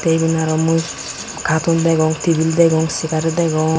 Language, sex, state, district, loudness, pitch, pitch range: Chakma, female, Tripura, Unakoti, -17 LUFS, 160 Hz, 160-165 Hz